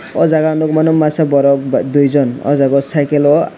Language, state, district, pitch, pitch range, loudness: Kokborok, Tripura, West Tripura, 145 Hz, 140-155 Hz, -13 LUFS